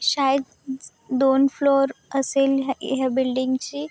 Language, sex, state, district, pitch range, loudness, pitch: Marathi, female, Maharashtra, Chandrapur, 265-275 Hz, -22 LUFS, 270 Hz